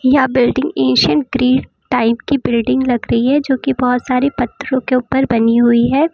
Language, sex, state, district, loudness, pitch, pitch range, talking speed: Hindi, female, Uttar Pradesh, Lucknow, -14 LUFS, 255 Hz, 240-270 Hz, 185 wpm